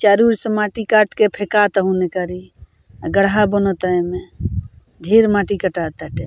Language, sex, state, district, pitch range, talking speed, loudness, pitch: Bhojpuri, female, Bihar, Muzaffarpur, 180-210 Hz, 160 wpm, -17 LUFS, 195 Hz